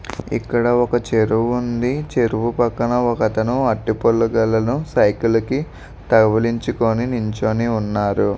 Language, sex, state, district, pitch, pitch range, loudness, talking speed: Telugu, male, Andhra Pradesh, Visakhapatnam, 115 Hz, 110-120 Hz, -18 LUFS, 115 wpm